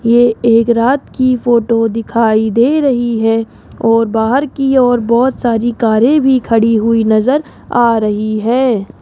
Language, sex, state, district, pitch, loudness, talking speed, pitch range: Hindi, female, Rajasthan, Jaipur, 235 Hz, -12 LUFS, 155 wpm, 225-250 Hz